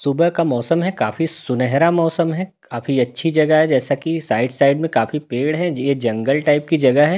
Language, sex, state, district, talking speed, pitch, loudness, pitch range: Hindi, male, Delhi, New Delhi, 240 wpm, 150 Hz, -18 LUFS, 130-165 Hz